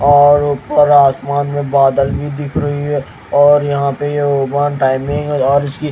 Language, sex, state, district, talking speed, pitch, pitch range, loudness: Hindi, male, Haryana, Jhajjar, 170 wpm, 145 Hz, 140-145 Hz, -13 LUFS